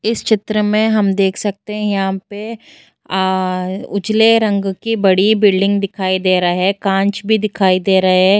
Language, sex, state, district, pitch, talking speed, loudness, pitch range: Hindi, female, Uttar Pradesh, Jyotiba Phule Nagar, 200 Hz, 170 wpm, -15 LUFS, 190-215 Hz